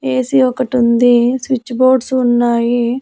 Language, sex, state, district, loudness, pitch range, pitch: Telugu, female, Andhra Pradesh, Annamaya, -13 LUFS, 240-260 Hz, 250 Hz